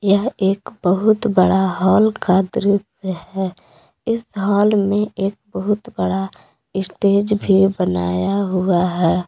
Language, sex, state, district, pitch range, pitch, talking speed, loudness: Hindi, female, Jharkhand, Palamu, 185-205 Hz, 195 Hz, 125 wpm, -18 LUFS